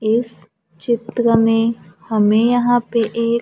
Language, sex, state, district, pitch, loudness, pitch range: Hindi, female, Maharashtra, Gondia, 230 Hz, -17 LUFS, 220-235 Hz